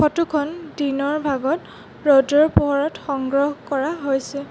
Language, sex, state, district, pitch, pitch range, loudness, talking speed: Assamese, female, Assam, Sonitpur, 285 Hz, 275-300 Hz, -20 LUFS, 105 wpm